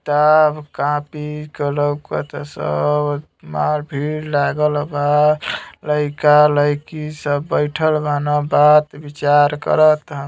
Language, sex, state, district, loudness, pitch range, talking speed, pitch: Bhojpuri, male, Uttar Pradesh, Gorakhpur, -17 LUFS, 145-150 Hz, 110 wpm, 150 Hz